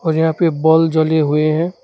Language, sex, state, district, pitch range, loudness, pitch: Hindi, male, West Bengal, Alipurduar, 155-160 Hz, -15 LUFS, 160 Hz